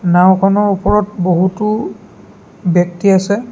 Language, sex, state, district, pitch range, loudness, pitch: Assamese, male, Assam, Sonitpur, 180-205 Hz, -13 LUFS, 195 Hz